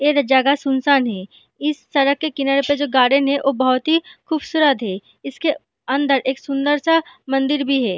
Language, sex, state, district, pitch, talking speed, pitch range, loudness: Hindi, female, Jharkhand, Sahebganj, 275 Hz, 195 wpm, 265-295 Hz, -18 LUFS